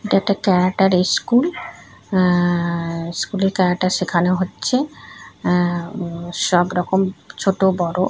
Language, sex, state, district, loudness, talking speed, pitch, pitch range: Bengali, female, West Bengal, North 24 Parganas, -19 LUFS, 110 wpm, 185 Hz, 175-195 Hz